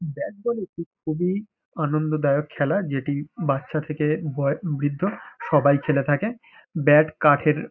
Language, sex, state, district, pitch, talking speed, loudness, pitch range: Bengali, male, West Bengal, Paschim Medinipur, 150 Hz, 125 wpm, -23 LUFS, 145-170 Hz